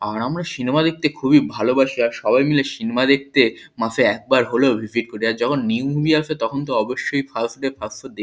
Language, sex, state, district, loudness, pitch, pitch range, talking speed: Bengali, male, West Bengal, Kolkata, -19 LUFS, 135 Hz, 120-150 Hz, 205 wpm